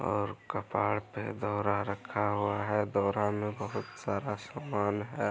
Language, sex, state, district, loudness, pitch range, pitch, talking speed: Hindi, male, Bihar, Araria, -33 LUFS, 100-105 Hz, 105 Hz, 145 wpm